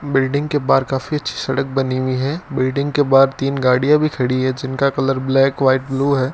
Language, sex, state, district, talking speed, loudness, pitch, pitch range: Hindi, male, Rajasthan, Bikaner, 220 wpm, -17 LUFS, 135 Hz, 130-140 Hz